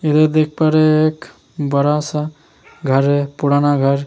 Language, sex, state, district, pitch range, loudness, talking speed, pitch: Hindi, male, Bihar, Vaishali, 140-155 Hz, -16 LUFS, 190 wpm, 150 Hz